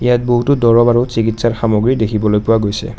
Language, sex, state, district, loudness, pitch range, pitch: Assamese, male, Assam, Kamrup Metropolitan, -14 LUFS, 110-120 Hz, 115 Hz